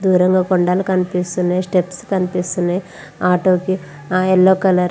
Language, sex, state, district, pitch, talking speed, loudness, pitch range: Telugu, female, Andhra Pradesh, Visakhapatnam, 185 Hz, 120 wpm, -17 LUFS, 180-185 Hz